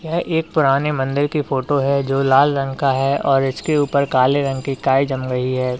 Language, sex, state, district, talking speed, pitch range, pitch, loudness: Hindi, male, Uttar Pradesh, Lalitpur, 230 wpm, 135-145 Hz, 135 Hz, -18 LUFS